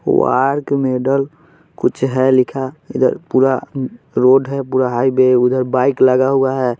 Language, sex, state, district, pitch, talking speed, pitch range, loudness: Hindi, male, Bihar, Vaishali, 130 Hz, 150 wpm, 130-135 Hz, -15 LUFS